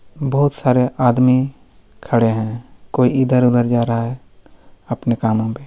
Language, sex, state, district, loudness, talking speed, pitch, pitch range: Hindi, male, Jharkhand, Ranchi, -17 LUFS, 150 wpm, 120 Hz, 115-130 Hz